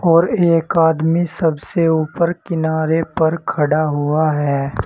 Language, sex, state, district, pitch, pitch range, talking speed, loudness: Hindi, male, Uttar Pradesh, Saharanpur, 160 Hz, 150-165 Hz, 125 wpm, -17 LUFS